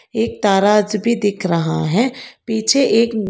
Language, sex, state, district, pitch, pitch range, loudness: Hindi, female, Karnataka, Bangalore, 220 Hz, 200-230 Hz, -16 LUFS